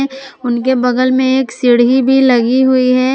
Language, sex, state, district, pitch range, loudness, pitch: Hindi, female, Jharkhand, Palamu, 250-265 Hz, -12 LUFS, 255 Hz